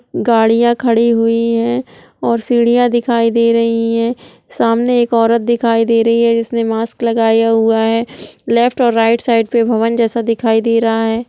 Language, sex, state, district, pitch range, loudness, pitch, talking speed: Hindi, female, Bihar, Jahanabad, 230-235 Hz, -13 LUFS, 230 Hz, 185 wpm